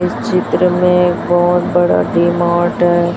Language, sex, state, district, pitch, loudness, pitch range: Hindi, female, Chhattisgarh, Raipur, 175 Hz, -13 LUFS, 175-180 Hz